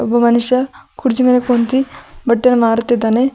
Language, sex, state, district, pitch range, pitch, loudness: Kannada, female, Karnataka, Bidar, 235-255 Hz, 250 Hz, -14 LUFS